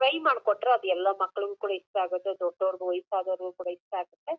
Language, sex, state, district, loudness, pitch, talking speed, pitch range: Kannada, female, Karnataka, Chamarajanagar, -29 LUFS, 190 Hz, 190 wpm, 180-205 Hz